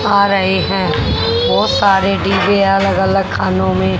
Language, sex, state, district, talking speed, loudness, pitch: Hindi, female, Haryana, Charkhi Dadri, 150 wpm, -14 LUFS, 190 Hz